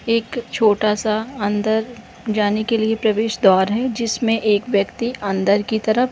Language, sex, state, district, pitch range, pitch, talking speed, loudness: Hindi, female, Bihar, Darbhanga, 210-230 Hz, 220 Hz, 165 wpm, -19 LUFS